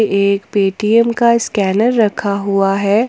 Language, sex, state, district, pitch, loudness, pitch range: Hindi, female, Jharkhand, Ranchi, 205 Hz, -14 LUFS, 200-225 Hz